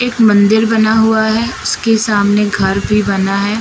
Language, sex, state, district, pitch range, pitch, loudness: Hindi, male, Uttar Pradesh, Lucknow, 205-220 Hz, 215 Hz, -12 LUFS